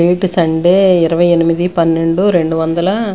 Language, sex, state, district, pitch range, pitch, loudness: Telugu, female, Andhra Pradesh, Sri Satya Sai, 165-185 Hz, 170 Hz, -12 LUFS